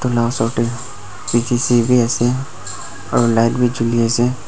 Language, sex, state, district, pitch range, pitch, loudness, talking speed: Nagamese, male, Nagaland, Dimapur, 115-125 Hz, 120 Hz, -17 LUFS, 160 wpm